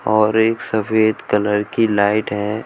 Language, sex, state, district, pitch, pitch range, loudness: Hindi, male, Uttar Pradesh, Shamli, 110 Hz, 105-110 Hz, -17 LUFS